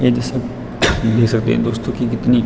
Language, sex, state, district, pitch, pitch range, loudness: Hindi, male, Uttarakhand, Tehri Garhwal, 115 Hz, 115-125 Hz, -17 LUFS